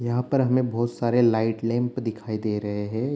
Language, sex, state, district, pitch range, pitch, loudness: Hindi, male, Bihar, Darbhanga, 110-125 Hz, 120 Hz, -24 LUFS